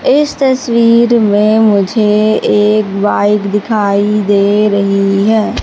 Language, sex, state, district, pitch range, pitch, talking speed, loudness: Hindi, female, Madhya Pradesh, Katni, 205-220 Hz, 210 Hz, 105 wpm, -10 LUFS